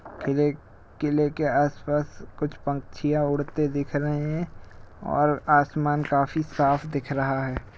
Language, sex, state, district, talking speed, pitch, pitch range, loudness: Hindi, male, Uttar Pradesh, Jalaun, 130 wpm, 145 Hz, 140-150 Hz, -25 LUFS